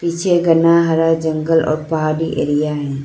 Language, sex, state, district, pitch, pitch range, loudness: Hindi, female, Arunachal Pradesh, Lower Dibang Valley, 160 Hz, 155-165 Hz, -16 LUFS